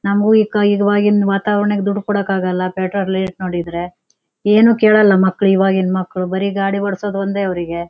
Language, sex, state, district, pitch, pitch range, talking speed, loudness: Kannada, female, Karnataka, Shimoga, 195 Hz, 185-205 Hz, 135 wpm, -15 LUFS